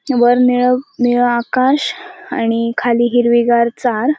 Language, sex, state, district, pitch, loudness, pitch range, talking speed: Marathi, female, Maharashtra, Sindhudurg, 245 Hz, -14 LUFS, 235-250 Hz, 130 wpm